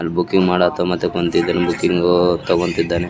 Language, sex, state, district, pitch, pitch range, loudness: Kannada, male, Karnataka, Raichur, 90 Hz, 85-90 Hz, -17 LUFS